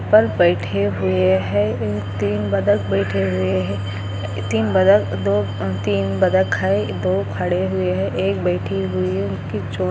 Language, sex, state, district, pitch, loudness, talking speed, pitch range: Hindi, female, Andhra Pradesh, Anantapur, 100 Hz, -19 LUFS, 155 wpm, 95-100 Hz